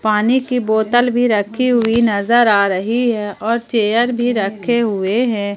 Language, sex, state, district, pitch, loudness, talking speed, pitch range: Hindi, female, Jharkhand, Ranchi, 230 Hz, -16 LUFS, 170 wpm, 210-240 Hz